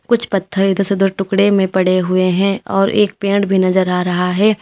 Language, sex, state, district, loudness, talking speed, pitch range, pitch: Hindi, female, Uttar Pradesh, Lalitpur, -15 LUFS, 235 wpm, 185-200 Hz, 195 Hz